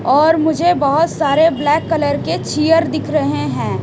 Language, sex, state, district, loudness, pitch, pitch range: Hindi, female, Haryana, Rohtak, -15 LUFS, 305 Hz, 275-320 Hz